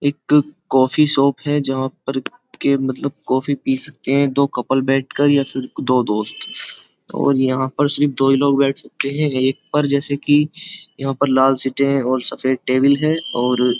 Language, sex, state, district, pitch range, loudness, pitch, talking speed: Hindi, male, Uttar Pradesh, Jyotiba Phule Nagar, 130-145 Hz, -18 LUFS, 140 Hz, 185 wpm